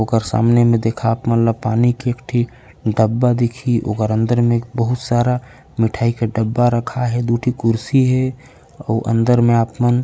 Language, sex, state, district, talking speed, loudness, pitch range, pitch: Chhattisgarhi, male, Chhattisgarh, Raigarh, 205 wpm, -17 LUFS, 115-125 Hz, 120 Hz